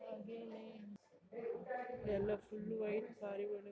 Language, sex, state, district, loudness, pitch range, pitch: Kannada, female, Karnataka, Shimoga, -45 LUFS, 205-230 Hz, 215 Hz